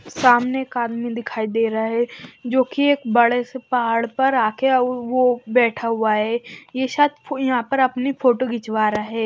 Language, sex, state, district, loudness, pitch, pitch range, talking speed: Hindi, male, Maharashtra, Washim, -20 LUFS, 245 Hz, 230-260 Hz, 180 wpm